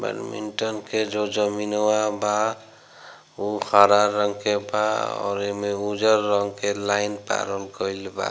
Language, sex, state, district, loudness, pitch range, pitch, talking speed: Bhojpuri, male, Bihar, Gopalganj, -23 LUFS, 100-105 Hz, 105 Hz, 135 wpm